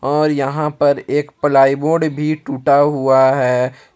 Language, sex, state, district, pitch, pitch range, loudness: Hindi, male, Jharkhand, Palamu, 145 Hz, 135-150 Hz, -15 LUFS